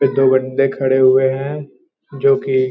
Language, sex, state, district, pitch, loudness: Hindi, male, Bihar, Gopalganj, 135 Hz, -15 LUFS